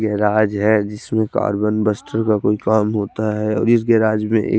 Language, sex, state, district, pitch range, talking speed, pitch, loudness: Hindi, male, Chandigarh, Chandigarh, 105-110 Hz, 185 wpm, 110 Hz, -18 LUFS